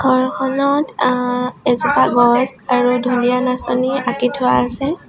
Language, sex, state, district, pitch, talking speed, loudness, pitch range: Assamese, female, Assam, Sonitpur, 250 Hz, 120 wpm, -16 LUFS, 245-265 Hz